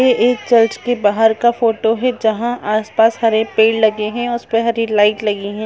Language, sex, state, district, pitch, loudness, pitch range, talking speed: Hindi, female, Chhattisgarh, Raigarh, 225 Hz, -15 LUFS, 215-235 Hz, 225 wpm